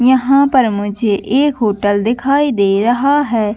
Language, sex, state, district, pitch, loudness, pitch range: Hindi, female, Chhattisgarh, Bastar, 240 Hz, -14 LUFS, 205-275 Hz